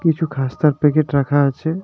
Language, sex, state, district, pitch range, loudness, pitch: Bengali, male, West Bengal, Darjeeling, 140-160 Hz, -17 LUFS, 150 Hz